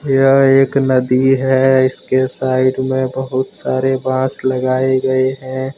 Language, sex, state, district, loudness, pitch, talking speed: Hindi, male, Jharkhand, Deoghar, -15 LUFS, 130 Hz, 135 wpm